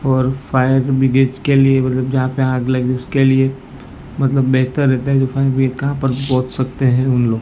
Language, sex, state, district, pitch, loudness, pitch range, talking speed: Hindi, male, Maharashtra, Mumbai Suburban, 130 Hz, -16 LUFS, 130-135 Hz, 200 wpm